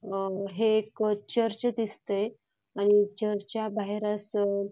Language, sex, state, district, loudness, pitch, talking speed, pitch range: Marathi, female, Karnataka, Belgaum, -29 LUFS, 210 Hz, 90 wpm, 200-215 Hz